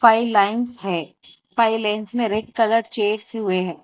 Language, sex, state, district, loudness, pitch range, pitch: Hindi, female, Telangana, Hyderabad, -21 LUFS, 200-230 Hz, 215 Hz